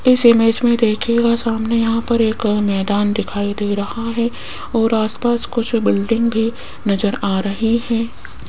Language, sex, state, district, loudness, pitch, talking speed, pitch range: Hindi, female, Rajasthan, Jaipur, -17 LUFS, 225 Hz, 165 wpm, 210-235 Hz